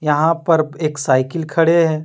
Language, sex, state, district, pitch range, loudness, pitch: Hindi, male, Jharkhand, Deoghar, 150-165 Hz, -16 LUFS, 155 Hz